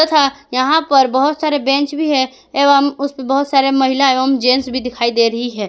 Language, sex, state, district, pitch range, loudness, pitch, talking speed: Hindi, female, Jharkhand, Garhwa, 255-280 Hz, -14 LUFS, 270 Hz, 210 wpm